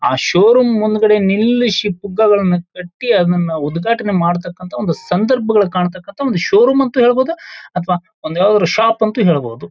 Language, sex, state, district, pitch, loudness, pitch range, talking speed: Kannada, male, Karnataka, Bijapur, 205 Hz, -14 LUFS, 180-225 Hz, 155 wpm